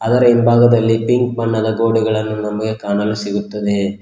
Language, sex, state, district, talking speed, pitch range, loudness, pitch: Kannada, male, Karnataka, Koppal, 120 wpm, 105-120 Hz, -16 LUFS, 110 Hz